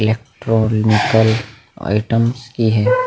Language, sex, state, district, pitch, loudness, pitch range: Hindi, male, Bihar, Vaishali, 110 Hz, -16 LUFS, 110-115 Hz